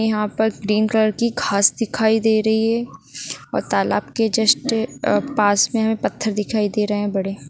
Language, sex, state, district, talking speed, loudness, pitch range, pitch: Hindi, female, Bihar, Saran, 190 wpm, -19 LUFS, 210-225 Hz, 220 Hz